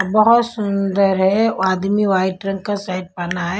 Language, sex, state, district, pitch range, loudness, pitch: Hindi, female, Punjab, Kapurthala, 185-205 Hz, -18 LUFS, 195 Hz